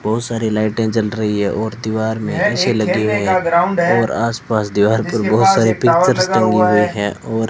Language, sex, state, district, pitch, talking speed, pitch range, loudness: Hindi, male, Rajasthan, Bikaner, 110 Hz, 200 wpm, 105-115 Hz, -16 LUFS